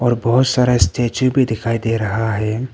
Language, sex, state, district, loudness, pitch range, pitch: Hindi, male, Arunachal Pradesh, Papum Pare, -17 LUFS, 110-125 Hz, 115 Hz